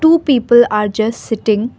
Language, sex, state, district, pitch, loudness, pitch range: English, female, Assam, Kamrup Metropolitan, 225 Hz, -13 LUFS, 215-250 Hz